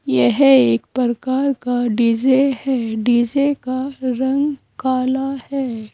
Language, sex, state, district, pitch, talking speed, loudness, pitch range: Hindi, female, Uttar Pradesh, Saharanpur, 260 Hz, 110 wpm, -18 LUFS, 240-270 Hz